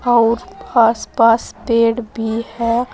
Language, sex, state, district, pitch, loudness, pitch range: Hindi, female, Uttar Pradesh, Saharanpur, 230 Hz, -16 LUFS, 230-235 Hz